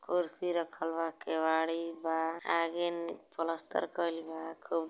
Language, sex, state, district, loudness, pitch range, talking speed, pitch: Hindi, female, Uttar Pradesh, Ghazipur, -35 LUFS, 160-170 Hz, 135 wpm, 165 Hz